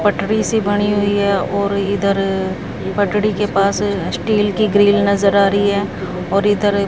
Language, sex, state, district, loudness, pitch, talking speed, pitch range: Hindi, female, Haryana, Jhajjar, -16 LUFS, 200 Hz, 165 wpm, 200-205 Hz